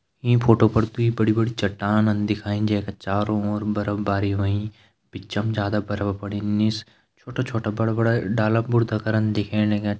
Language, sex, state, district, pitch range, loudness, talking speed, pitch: Garhwali, male, Uttarakhand, Uttarkashi, 105-110 Hz, -23 LUFS, 175 wpm, 105 Hz